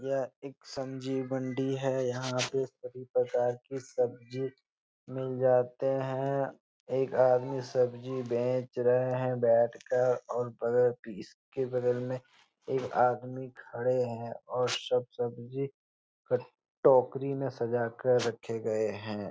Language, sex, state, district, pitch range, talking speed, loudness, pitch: Hindi, male, Bihar, Jahanabad, 120-130 Hz, 125 wpm, -31 LUFS, 125 Hz